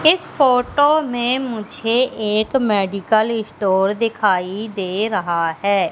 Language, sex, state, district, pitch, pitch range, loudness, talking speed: Hindi, female, Madhya Pradesh, Katni, 220 Hz, 200-250 Hz, -18 LUFS, 110 wpm